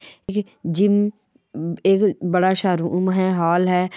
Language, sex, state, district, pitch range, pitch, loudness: Hindi, female, Chhattisgarh, Balrampur, 180-205 Hz, 185 Hz, -20 LUFS